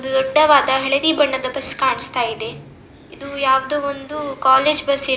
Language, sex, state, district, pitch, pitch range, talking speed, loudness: Kannada, female, Karnataka, Dakshina Kannada, 270 Hz, 265-285 Hz, 160 wpm, -17 LUFS